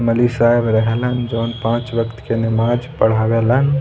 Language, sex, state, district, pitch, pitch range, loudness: Bhojpuri, male, Bihar, East Champaran, 115 Hz, 115-120 Hz, -17 LUFS